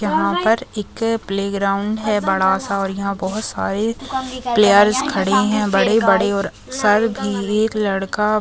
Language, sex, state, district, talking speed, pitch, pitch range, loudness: Hindi, female, Chhattisgarh, Raigarh, 150 wpm, 210 Hz, 200-220 Hz, -18 LUFS